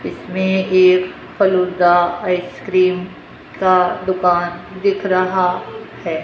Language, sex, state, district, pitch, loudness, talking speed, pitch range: Hindi, female, Rajasthan, Jaipur, 185 Hz, -16 LUFS, 85 wpm, 180-185 Hz